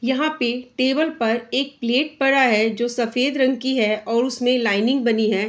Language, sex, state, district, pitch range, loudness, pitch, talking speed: Hindi, female, Bihar, Araria, 230-265 Hz, -20 LUFS, 250 Hz, 195 wpm